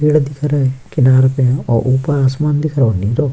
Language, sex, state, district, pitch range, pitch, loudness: Hindi, male, Bihar, Kishanganj, 130-150 Hz, 135 Hz, -14 LUFS